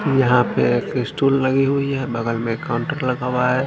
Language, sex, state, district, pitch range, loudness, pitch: Hindi, male, Haryana, Charkhi Dadri, 120-135 Hz, -19 LUFS, 125 Hz